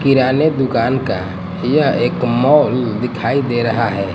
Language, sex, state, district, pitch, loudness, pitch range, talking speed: Hindi, male, Gujarat, Gandhinagar, 125 Hz, -16 LUFS, 115-135 Hz, 145 wpm